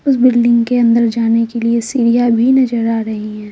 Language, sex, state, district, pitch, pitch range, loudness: Hindi, female, Bihar, Patna, 235 Hz, 230-245 Hz, -13 LUFS